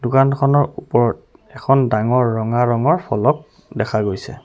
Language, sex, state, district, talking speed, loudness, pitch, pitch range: Assamese, male, Assam, Sonitpur, 120 wpm, -17 LUFS, 125 Hz, 110-140 Hz